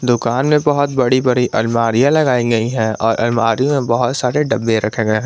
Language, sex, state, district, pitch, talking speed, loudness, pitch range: Hindi, male, Jharkhand, Garhwa, 120 Hz, 205 wpm, -15 LUFS, 115-135 Hz